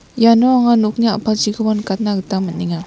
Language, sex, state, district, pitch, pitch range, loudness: Garo, female, Meghalaya, West Garo Hills, 215 Hz, 195-230 Hz, -15 LUFS